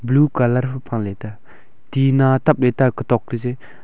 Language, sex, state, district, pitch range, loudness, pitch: Wancho, male, Arunachal Pradesh, Longding, 115-135 Hz, -18 LUFS, 125 Hz